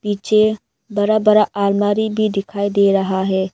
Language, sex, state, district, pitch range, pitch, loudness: Hindi, female, Arunachal Pradesh, Lower Dibang Valley, 200-215 Hz, 205 Hz, -17 LUFS